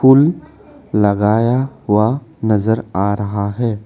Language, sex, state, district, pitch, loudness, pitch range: Hindi, male, Assam, Kamrup Metropolitan, 110 Hz, -16 LUFS, 105-130 Hz